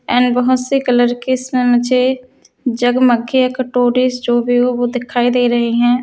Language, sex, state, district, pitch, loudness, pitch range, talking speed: Hindi, female, Haryana, Charkhi Dadri, 245 Hz, -15 LUFS, 245-255 Hz, 200 wpm